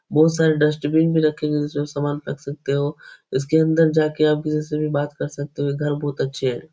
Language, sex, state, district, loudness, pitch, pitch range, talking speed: Hindi, male, Bihar, Supaul, -21 LUFS, 150 Hz, 145-155 Hz, 260 wpm